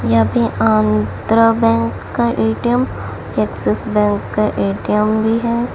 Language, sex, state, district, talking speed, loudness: Hindi, female, Delhi, New Delhi, 125 wpm, -16 LUFS